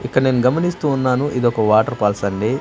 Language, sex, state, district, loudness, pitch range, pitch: Telugu, male, Andhra Pradesh, Manyam, -17 LUFS, 110-135 Hz, 125 Hz